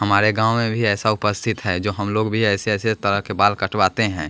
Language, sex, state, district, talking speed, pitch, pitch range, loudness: Hindi, male, Bihar, West Champaran, 250 wpm, 105 Hz, 100-110 Hz, -19 LUFS